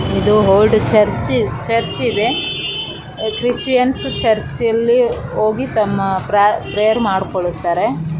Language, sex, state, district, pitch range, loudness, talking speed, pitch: Kannada, female, Karnataka, Raichur, 195-230 Hz, -16 LUFS, 110 wpm, 215 Hz